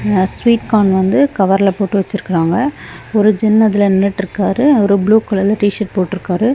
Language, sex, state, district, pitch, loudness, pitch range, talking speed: Tamil, female, Tamil Nadu, Kanyakumari, 205 Hz, -13 LUFS, 195-215 Hz, 135 wpm